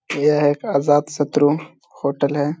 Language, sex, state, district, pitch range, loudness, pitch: Hindi, male, Bihar, Gaya, 145-150 Hz, -19 LUFS, 145 Hz